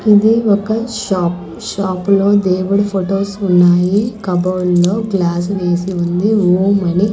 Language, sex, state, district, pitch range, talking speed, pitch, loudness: Telugu, female, Andhra Pradesh, Manyam, 180-205 Hz, 125 wpm, 190 Hz, -14 LUFS